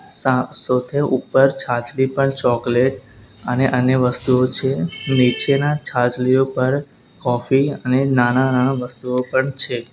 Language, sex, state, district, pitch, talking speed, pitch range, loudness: Gujarati, male, Gujarat, Valsad, 130 Hz, 115 wpm, 125-135 Hz, -18 LUFS